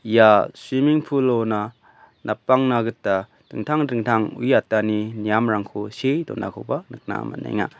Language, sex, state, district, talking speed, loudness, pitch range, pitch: Garo, male, Meghalaya, West Garo Hills, 100 wpm, -21 LUFS, 105-130 Hz, 115 Hz